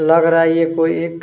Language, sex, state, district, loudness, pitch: Hindi, male, Chhattisgarh, Kabirdham, -15 LUFS, 165 Hz